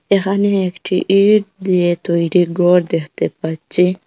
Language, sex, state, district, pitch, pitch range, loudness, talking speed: Bengali, female, Assam, Hailakandi, 180 Hz, 175-195 Hz, -16 LUFS, 120 wpm